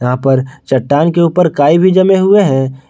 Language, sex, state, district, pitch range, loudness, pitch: Hindi, male, Jharkhand, Garhwa, 135-180 Hz, -11 LUFS, 145 Hz